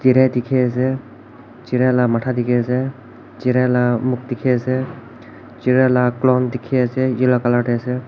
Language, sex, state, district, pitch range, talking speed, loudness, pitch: Nagamese, male, Nagaland, Kohima, 120-130 Hz, 165 wpm, -18 LUFS, 125 Hz